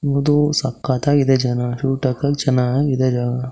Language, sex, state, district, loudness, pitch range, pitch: Kannada, male, Karnataka, Shimoga, -18 LUFS, 125-140 Hz, 135 Hz